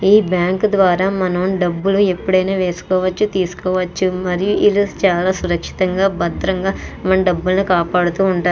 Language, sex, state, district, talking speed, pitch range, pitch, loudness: Telugu, female, Andhra Pradesh, Chittoor, 120 wpm, 180-195 Hz, 185 Hz, -17 LUFS